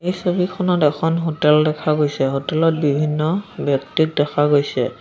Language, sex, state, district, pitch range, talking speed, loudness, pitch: Assamese, female, Assam, Sonitpur, 145-165 Hz, 145 wpm, -18 LUFS, 155 Hz